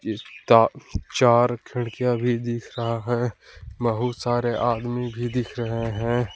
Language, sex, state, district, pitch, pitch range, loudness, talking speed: Hindi, male, Jharkhand, Palamu, 120 Hz, 115-120 Hz, -23 LUFS, 130 wpm